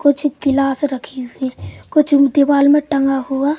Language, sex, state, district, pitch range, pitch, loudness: Hindi, male, Madhya Pradesh, Katni, 270-290 Hz, 280 Hz, -16 LUFS